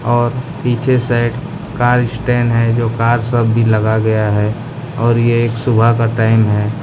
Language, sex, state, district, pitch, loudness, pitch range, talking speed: Hindi, male, Odisha, Khordha, 120 Hz, -14 LUFS, 115-120 Hz, 175 wpm